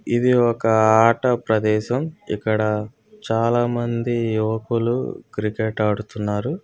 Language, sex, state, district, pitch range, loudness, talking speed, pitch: Telugu, male, Andhra Pradesh, Guntur, 110-120 Hz, -21 LUFS, 70 wpm, 115 Hz